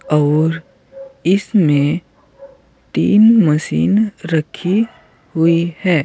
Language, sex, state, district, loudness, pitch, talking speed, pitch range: Hindi, male, Uttar Pradesh, Saharanpur, -15 LUFS, 170 Hz, 70 wpm, 155-210 Hz